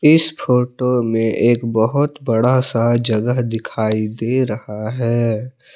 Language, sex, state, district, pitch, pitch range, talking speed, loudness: Hindi, male, Jharkhand, Palamu, 120 Hz, 115-125 Hz, 125 wpm, -18 LUFS